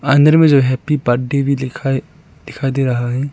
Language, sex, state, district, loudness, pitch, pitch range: Hindi, male, Arunachal Pradesh, Lower Dibang Valley, -15 LUFS, 135 Hz, 130-145 Hz